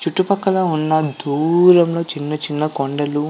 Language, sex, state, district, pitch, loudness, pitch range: Telugu, male, Andhra Pradesh, Visakhapatnam, 155 Hz, -17 LUFS, 145-170 Hz